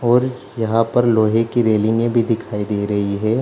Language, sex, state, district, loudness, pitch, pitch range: Hindi, male, Bihar, Jahanabad, -18 LUFS, 115 Hz, 105-120 Hz